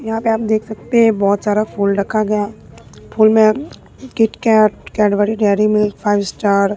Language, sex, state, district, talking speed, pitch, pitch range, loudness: Hindi, female, Bihar, Katihar, 175 wpm, 215 Hz, 205-220 Hz, -15 LUFS